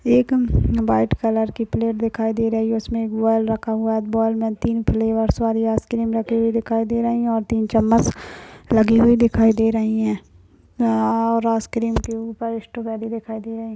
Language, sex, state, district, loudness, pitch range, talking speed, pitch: Hindi, male, Maharashtra, Nagpur, -20 LUFS, 220-230 Hz, 190 wpm, 225 Hz